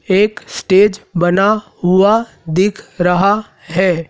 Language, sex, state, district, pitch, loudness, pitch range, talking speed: Hindi, male, Madhya Pradesh, Dhar, 195 Hz, -14 LUFS, 180-210 Hz, 100 wpm